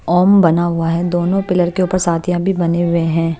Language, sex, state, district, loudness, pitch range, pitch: Hindi, female, Haryana, Jhajjar, -15 LUFS, 170-180 Hz, 175 Hz